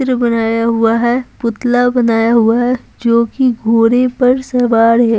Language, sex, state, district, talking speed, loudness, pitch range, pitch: Hindi, female, Bihar, Patna, 150 wpm, -13 LUFS, 230-250 Hz, 235 Hz